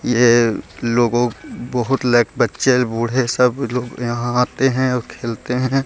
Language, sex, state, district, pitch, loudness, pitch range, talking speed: Hindi, male, Bihar, Gaya, 120 Hz, -18 LUFS, 120-130 Hz, 155 wpm